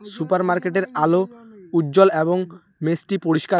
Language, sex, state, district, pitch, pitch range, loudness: Bengali, male, West Bengal, Alipurduar, 180 Hz, 165-195 Hz, -20 LUFS